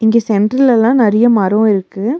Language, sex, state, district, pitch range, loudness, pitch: Tamil, female, Tamil Nadu, Nilgiris, 210-240 Hz, -12 LUFS, 225 Hz